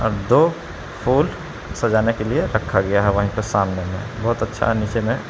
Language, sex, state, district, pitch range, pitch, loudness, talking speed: Hindi, male, Jharkhand, Palamu, 100-115 Hz, 110 Hz, -20 LUFS, 190 wpm